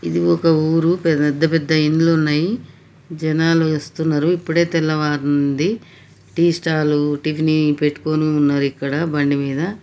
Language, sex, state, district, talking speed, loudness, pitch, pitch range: Telugu, male, Telangana, Nalgonda, 115 wpm, -18 LUFS, 155 Hz, 145-165 Hz